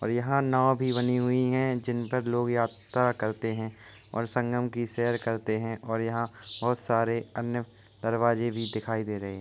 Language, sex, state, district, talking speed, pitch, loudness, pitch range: Hindi, male, Uttar Pradesh, Varanasi, 190 wpm, 115 Hz, -29 LUFS, 115-120 Hz